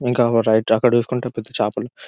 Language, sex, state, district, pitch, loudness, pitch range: Telugu, male, Telangana, Nalgonda, 120 Hz, -19 LUFS, 115-125 Hz